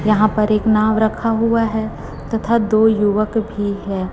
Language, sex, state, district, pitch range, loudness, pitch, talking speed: Hindi, female, Chhattisgarh, Raipur, 210-225 Hz, -17 LUFS, 215 Hz, 175 wpm